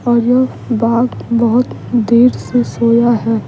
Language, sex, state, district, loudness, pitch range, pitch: Hindi, female, Bihar, Patna, -13 LUFS, 230-245 Hz, 235 Hz